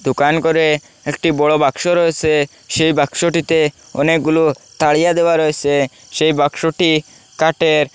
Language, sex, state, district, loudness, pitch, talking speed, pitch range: Bengali, male, Assam, Hailakandi, -15 LUFS, 155 Hz, 115 wpm, 145-165 Hz